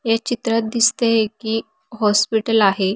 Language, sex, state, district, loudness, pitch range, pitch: Marathi, female, Maharashtra, Aurangabad, -18 LUFS, 220-230 Hz, 225 Hz